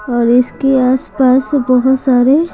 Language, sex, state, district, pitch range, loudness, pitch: Hindi, female, Bihar, Patna, 250-270 Hz, -12 LUFS, 255 Hz